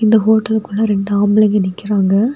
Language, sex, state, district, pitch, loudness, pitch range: Tamil, female, Tamil Nadu, Kanyakumari, 210 Hz, -14 LUFS, 200-220 Hz